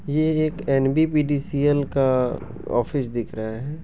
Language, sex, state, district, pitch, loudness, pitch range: Hindi, male, Bihar, Begusarai, 140 Hz, -22 LUFS, 130-150 Hz